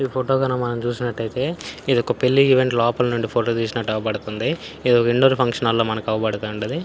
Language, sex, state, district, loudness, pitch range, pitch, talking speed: Telugu, male, Andhra Pradesh, Anantapur, -20 LUFS, 115-130 Hz, 120 Hz, 165 wpm